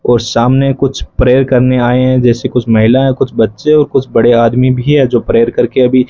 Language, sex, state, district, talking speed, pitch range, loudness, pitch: Hindi, male, Rajasthan, Bikaner, 225 wpm, 120-130 Hz, -10 LUFS, 125 Hz